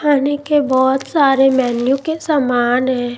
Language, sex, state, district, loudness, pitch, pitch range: Hindi, female, Chandigarh, Chandigarh, -15 LUFS, 270 Hz, 255-290 Hz